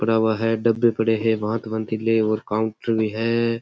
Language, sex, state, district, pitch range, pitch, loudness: Rajasthani, male, Rajasthan, Churu, 110-115 Hz, 110 Hz, -22 LUFS